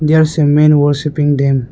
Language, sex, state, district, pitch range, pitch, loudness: English, male, Arunachal Pradesh, Lower Dibang Valley, 145-150 Hz, 145 Hz, -12 LUFS